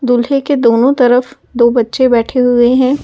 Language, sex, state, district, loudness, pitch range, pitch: Hindi, female, Delhi, New Delhi, -11 LUFS, 240-260 Hz, 250 Hz